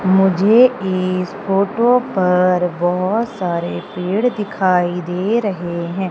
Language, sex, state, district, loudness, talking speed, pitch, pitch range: Hindi, female, Madhya Pradesh, Umaria, -17 LUFS, 110 wpm, 185 Hz, 180-205 Hz